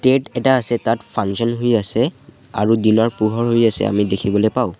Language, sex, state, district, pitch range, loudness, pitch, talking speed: Assamese, male, Assam, Sonitpur, 110-120 Hz, -17 LUFS, 115 Hz, 190 wpm